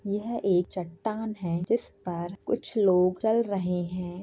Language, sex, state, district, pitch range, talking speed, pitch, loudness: Hindi, female, Uttar Pradesh, Jyotiba Phule Nagar, 180-215 Hz, 155 wpm, 185 Hz, -28 LUFS